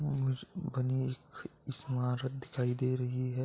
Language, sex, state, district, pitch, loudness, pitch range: Hindi, male, Uttar Pradesh, Gorakhpur, 130 Hz, -35 LUFS, 125-135 Hz